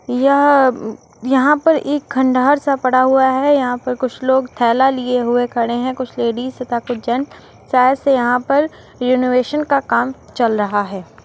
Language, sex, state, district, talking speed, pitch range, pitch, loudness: Hindi, female, Uttar Pradesh, Muzaffarnagar, 185 wpm, 245-270 Hz, 255 Hz, -16 LUFS